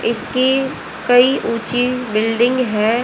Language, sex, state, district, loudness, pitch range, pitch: Hindi, female, Haryana, Rohtak, -16 LUFS, 225-255 Hz, 245 Hz